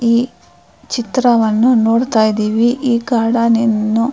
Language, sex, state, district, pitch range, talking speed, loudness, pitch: Kannada, female, Karnataka, Mysore, 225-240 Hz, 100 wpm, -14 LUFS, 235 Hz